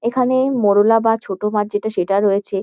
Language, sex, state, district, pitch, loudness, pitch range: Bengali, female, West Bengal, Kolkata, 210 Hz, -17 LUFS, 200-225 Hz